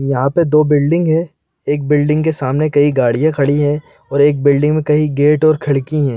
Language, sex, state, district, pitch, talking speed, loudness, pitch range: Hindi, male, Chhattisgarh, Bilaspur, 145 Hz, 215 wpm, -14 LUFS, 140-155 Hz